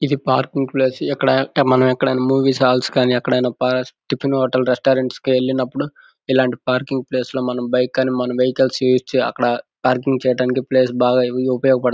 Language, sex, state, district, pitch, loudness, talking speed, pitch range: Telugu, male, Andhra Pradesh, Guntur, 130 Hz, -18 LUFS, 160 wpm, 125-130 Hz